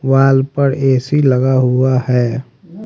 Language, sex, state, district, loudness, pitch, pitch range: Hindi, male, Haryana, Rohtak, -13 LUFS, 135 Hz, 130-135 Hz